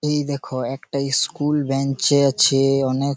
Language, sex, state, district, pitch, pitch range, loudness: Bengali, male, West Bengal, Malda, 140 Hz, 135-140 Hz, -20 LUFS